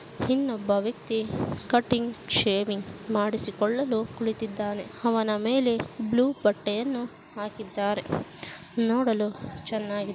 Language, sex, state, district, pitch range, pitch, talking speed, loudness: Kannada, female, Karnataka, Dakshina Kannada, 205-235 Hz, 220 Hz, 85 wpm, -27 LUFS